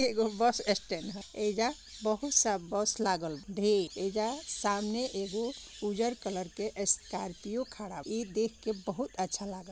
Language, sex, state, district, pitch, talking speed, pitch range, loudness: Bhojpuri, female, Bihar, Gopalganj, 210 Hz, 150 wpm, 195-230 Hz, -33 LUFS